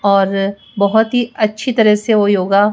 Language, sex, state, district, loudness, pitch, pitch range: Hindi, female, Rajasthan, Jaipur, -14 LUFS, 205 Hz, 200-220 Hz